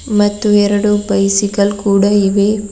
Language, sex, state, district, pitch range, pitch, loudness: Kannada, female, Karnataka, Bidar, 200-210 Hz, 205 Hz, -13 LUFS